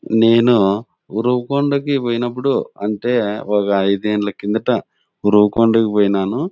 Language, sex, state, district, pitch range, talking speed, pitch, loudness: Telugu, male, Andhra Pradesh, Anantapur, 105-120 Hz, 90 wpm, 110 Hz, -17 LUFS